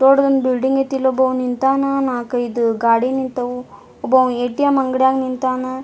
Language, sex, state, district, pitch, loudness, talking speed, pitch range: Kannada, female, Karnataka, Dharwad, 260 Hz, -17 LUFS, 135 wpm, 250-265 Hz